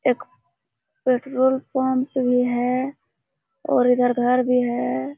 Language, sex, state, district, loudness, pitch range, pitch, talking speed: Hindi, female, Jharkhand, Sahebganj, -21 LUFS, 245-260 Hz, 250 Hz, 115 wpm